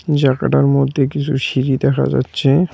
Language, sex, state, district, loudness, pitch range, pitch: Bengali, male, West Bengal, Cooch Behar, -16 LUFS, 130-145 Hz, 135 Hz